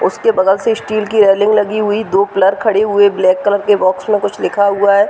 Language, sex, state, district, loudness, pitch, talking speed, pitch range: Hindi, female, Uttar Pradesh, Deoria, -13 LUFS, 205 Hz, 260 wpm, 200-215 Hz